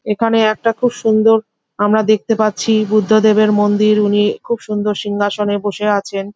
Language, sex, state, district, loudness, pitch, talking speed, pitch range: Bengali, female, West Bengal, Jhargram, -15 LUFS, 215 Hz, 140 wpm, 205-220 Hz